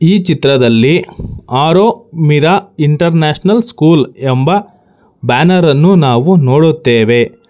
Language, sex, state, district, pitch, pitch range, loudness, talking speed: Kannada, male, Karnataka, Bangalore, 155 Hz, 130-185 Hz, -10 LUFS, 90 wpm